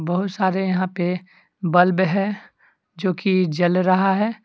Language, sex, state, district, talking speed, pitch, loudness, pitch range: Hindi, male, Jharkhand, Deoghar, 150 wpm, 185 Hz, -20 LUFS, 180-195 Hz